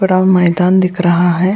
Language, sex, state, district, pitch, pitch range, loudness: Hindi, female, Goa, North and South Goa, 180 Hz, 175-185 Hz, -12 LUFS